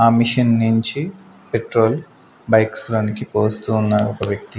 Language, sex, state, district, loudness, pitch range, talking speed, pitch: Telugu, male, Andhra Pradesh, Manyam, -18 LUFS, 110-120 Hz, 130 wpm, 115 Hz